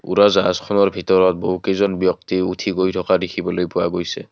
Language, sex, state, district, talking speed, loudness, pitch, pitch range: Assamese, male, Assam, Kamrup Metropolitan, 140 wpm, -18 LUFS, 95 Hz, 90-95 Hz